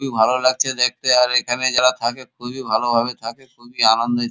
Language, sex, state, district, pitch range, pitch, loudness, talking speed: Bengali, male, West Bengal, Kolkata, 120-130 Hz, 125 Hz, -18 LUFS, 180 wpm